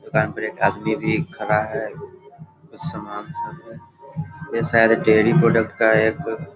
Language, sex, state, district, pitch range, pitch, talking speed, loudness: Hindi, male, Bihar, Sitamarhi, 110-155 Hz, 115 Hz, 165 wpm, -20 LUFS